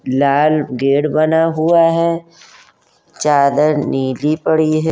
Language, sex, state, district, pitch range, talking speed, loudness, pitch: Hindi, female, Uttar Pradesh, Hamirpur, 140-160 Hz, 110 wpm, -15 LUFS, 155 Hz